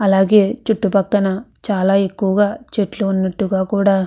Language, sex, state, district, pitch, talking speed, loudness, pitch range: Telugu, female, Andhra Pradesh, Visakhapatnam, 200 Hz, 120 wpm, -17 LUFS, 195-205 Hz